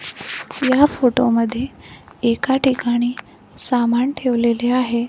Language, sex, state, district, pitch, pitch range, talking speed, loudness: Marathi, female, Maharashtra, Gondia, 245 Hz, 235-260 Hz, 95 wpm, -18 LUFS